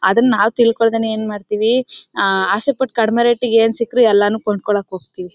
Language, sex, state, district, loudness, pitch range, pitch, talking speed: Kannada, female, Karnataka, Mysore, -16 LUFS, 205-235 Hz, 225 Hz, 170 wpm